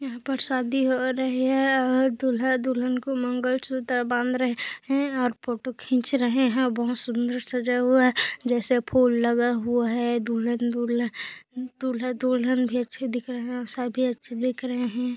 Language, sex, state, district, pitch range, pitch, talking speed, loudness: Hindi, female, Chhattisgarh, Kabirdham, 245-255 Hz, 250 Hz, 175 wpm, -25 LUFS